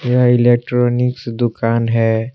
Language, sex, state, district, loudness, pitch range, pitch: Hindi, male, Jharkhand, Deoghar, -15 LUFS, 115-125 Hz, 120 Hz